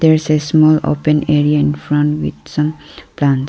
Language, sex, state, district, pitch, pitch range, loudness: English, female, Arunachal Pradesh, Lower Dibang Valley, 150 Hz, 145-155 Hz, -15 LUFS